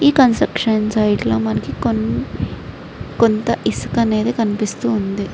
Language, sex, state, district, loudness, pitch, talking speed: Telugu, female, Andhra Pradesh, Srikakulam, -18 LUFS, 215 Hz, 110 wpm